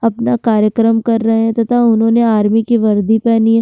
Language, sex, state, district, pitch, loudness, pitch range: Hindi, female, Uttarakhand, Tehri Garhwal, 225 Hz, -13 LUFS, 225-230 Hz